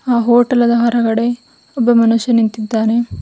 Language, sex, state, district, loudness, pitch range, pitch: Kannada, female, Karnataka, Bidar, -14 LUFS, 230-240 Hz, 235 Hz